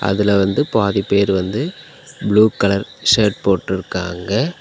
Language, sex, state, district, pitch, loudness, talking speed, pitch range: Tamil, male, Tamil Nadu, Nilgiris, 100 Hz, -17 LUFS, 115 wpm, 95-110 Hz